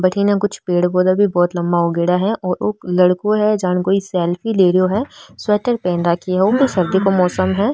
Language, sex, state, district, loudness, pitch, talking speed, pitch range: Marwari, female, Rajasthan, Nagaur, -16 LUFS, 185 Hz, 210 wpm, 180-205 Hz